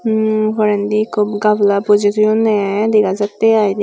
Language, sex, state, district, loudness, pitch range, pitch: Chakma, female, Tripura, Unakoti, -14 LUFS, 205-215 Hz, 210 Hz